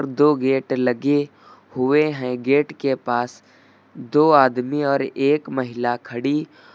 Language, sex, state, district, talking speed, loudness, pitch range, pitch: Hindi, male, Uttar Pradesh, Lucknow, 125 wpm, -20 LUFS, 125-145 Hz, 135 Hz